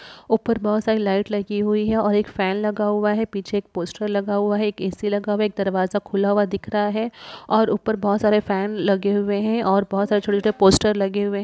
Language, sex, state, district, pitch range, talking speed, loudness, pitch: Hindi, female, Uttar Pradesh, Jyotiba Phule Nagar, 200-210 Hz, 245 wpm, -21 LUFS, 205 Hz